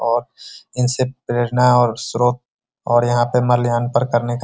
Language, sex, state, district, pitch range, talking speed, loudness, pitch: Hindi, male, Bihar, Muzaffarpur, 120-125 Hz, 160 wpm, -18 LUFS, 120 Hz